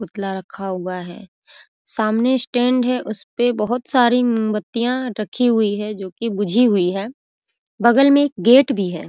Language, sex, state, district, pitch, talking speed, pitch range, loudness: Hindi, female, Bihar, Muzaffarpur, 225 Hz, 165 wpm, 200-245 Hz, -18 LUFS